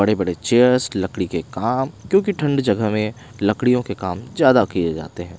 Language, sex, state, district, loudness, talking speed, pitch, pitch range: Hindi, male, Himachal Pradesh, Shimla, -19 LUFS, 180 wpm, 105 Hz, 95-125 Hz